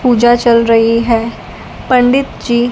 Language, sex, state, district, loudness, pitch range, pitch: Hindi, male, Punjab, Fazilka, -11 LUFS, 230-245 Hz, 240 Hz